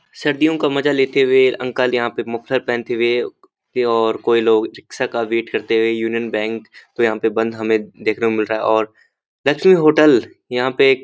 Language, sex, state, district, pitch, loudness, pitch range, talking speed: Hindi, male, Uttarakhand, Uttarkashi, 120 Hz, -17 LUFS, 115-135 Hz, 195 wpm